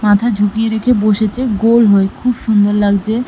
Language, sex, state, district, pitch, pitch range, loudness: Bengali, female, West Bengal, Malda, 215 Hz, 205-235 Hz, -13 LUFS